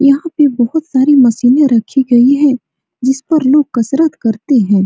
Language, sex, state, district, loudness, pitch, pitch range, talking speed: Hindi, female, Bihar, Supaul, -11 LUFS, 265 Hz, 240-290 Hz, 175 wpm